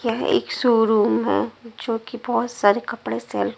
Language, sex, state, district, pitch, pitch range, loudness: Hindi, female, Punjab, Pathankot, 230 Hz, 225-240 Hz, -21 LUFS